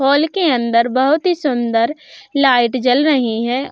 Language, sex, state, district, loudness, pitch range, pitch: Hindi, female, Uttar Pradesh, Budaun, -15 LUFS, 240-295 Hz, 260 Hz